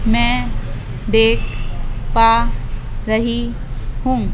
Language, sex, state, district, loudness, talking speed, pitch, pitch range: Hindi, female, Madhya Pradesh, Bhopal, -18 LUFS, 70 wpm, 115 Hz, 110-120 Hz